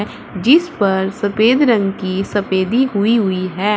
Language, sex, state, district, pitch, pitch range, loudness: Hindi, female, Uttar Pradesh, Shamli, 205 Hz, 190-225 Hz, -16 LUFS